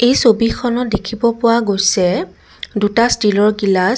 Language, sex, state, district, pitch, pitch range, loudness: Assamese, female, Assam, Kamrup Metropolitan, 225 Hz, 200-235 Hz, -15 LUFS